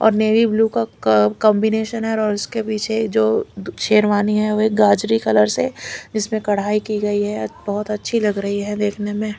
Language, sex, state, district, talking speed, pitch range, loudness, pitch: Hindi, female, Bihar, Katihar, 185 wpm, 205-220 Hz, -18 LUFS, 210 Hz